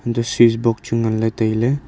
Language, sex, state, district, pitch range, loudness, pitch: Wancho, male, Arunachal Pradesh, Longding, 110-120 Hz, -18 LUFS, 115 Hz